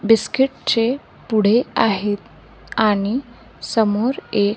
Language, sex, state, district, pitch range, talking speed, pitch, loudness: Marathi, female, Maharashtra, Gondia, 205-240 Hz, 90 wpm, 225 Hz, -19 LUFS